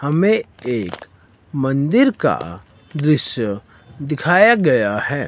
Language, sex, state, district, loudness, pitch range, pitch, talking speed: Hindi, male, Himachal Pradesh, Shimla, -17 LUFS, 105-155 Hz, 135 Hz, 90 wpm